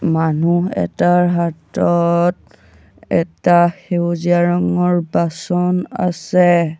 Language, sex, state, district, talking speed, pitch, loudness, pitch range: Assamese, male, Assam, Sonitpur, 70 wpm, 175 Hz, -16 LUFS, 165-180 Hz